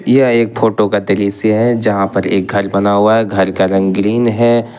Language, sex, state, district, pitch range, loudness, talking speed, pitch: Hindi, male, Jharkhand, Ranchi, 100-115 Hz, -13 LUFS, 225 wpm, 105 Hz